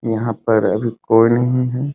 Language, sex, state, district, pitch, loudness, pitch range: Hindi, male, Bihar, Muzaffarpur, 115 Hz, -17 LUFS, 115-125 Hz